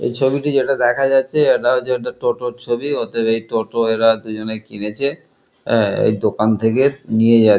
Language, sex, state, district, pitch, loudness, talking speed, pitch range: Bengali, male, West Bengal, Kolkata, 120 Hz, -17 LUFS, 165 wpm, 110-135 Hz